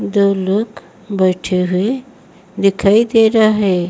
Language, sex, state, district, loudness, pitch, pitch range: Hindi, female, Odisha, Malkangiri, -14 LUFS, 200 Hz, 185-220 Hz